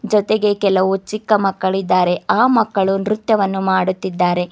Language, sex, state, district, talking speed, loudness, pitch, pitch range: Kannada, female, Karnataka, Bidar, 105 wpm, -17 LUFS, 195 Hz, 190-210 Hz